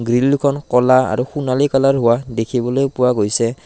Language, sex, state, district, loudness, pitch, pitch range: Assamese, male, Assam, Kamrup Metropolitan, -16 LUFS, 125 Hz, 120-135 Hz